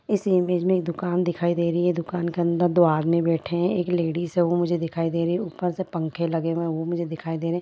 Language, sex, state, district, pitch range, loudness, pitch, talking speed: Hindi, female, Bihar, Lakhisarai, 165-180 Hz, -24 LUFS, 170 Hz, 290 wpm